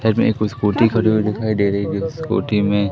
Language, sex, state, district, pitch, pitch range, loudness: Hindi, male, Madhya Pradesh, Katni, 105 Hz, 100-110 Hz, -18 LUFS